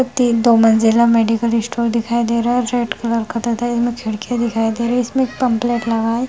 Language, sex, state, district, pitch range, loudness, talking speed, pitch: Hindi, female, Bihar, Lakhisarai, 230-240 Hz, -16 LUFS, 230 wpm, 235 Hz